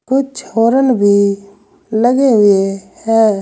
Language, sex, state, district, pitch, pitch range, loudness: Hindi, male, Uttar Pradesh, Saharanpur, 220 Hz, 200-245 Hz, -13 LUFS